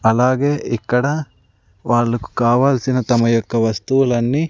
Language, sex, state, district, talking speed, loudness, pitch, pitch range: Telugu, male, Andhra Pradesh, Sri Satya Sai, 80 wpm, -17 LUFS, 120 Hz, 115-130 Hz